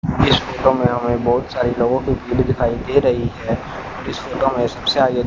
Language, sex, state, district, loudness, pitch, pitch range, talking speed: Hindi, male, Haryana, Rohtak, -18 LUFS, 125 Hz, 120-130 Hz, 195 wpm